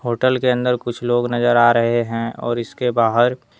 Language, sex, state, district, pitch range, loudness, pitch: Hindi, male, Jharkhand, Deoghar, 120-125 Hz, -18 LUFS, 120 Hz